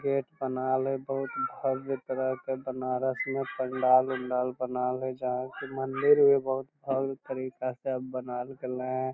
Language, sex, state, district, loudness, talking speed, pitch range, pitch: Magahi, male, Bihar, Lakhisarai, -30 LUFS, 170 wpm, 130-135 Hz, 130 Hz